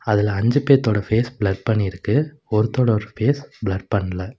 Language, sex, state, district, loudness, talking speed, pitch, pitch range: Tamil, male, Tamil Nadu, Nilgiris, -20 LUFS, 150 wpm, 110 Hz, 100-125 Hz